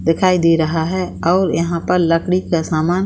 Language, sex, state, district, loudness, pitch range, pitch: Hindi, female, Bihar, Saran, -16 LUFS, 165-180 Hz, 170 Hz